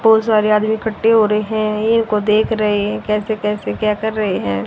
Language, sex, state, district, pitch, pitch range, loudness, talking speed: Hindi, female, Haryana, Rohtak, 215 Hz, 210-220 Hz, -16 LUFS, 220 wpm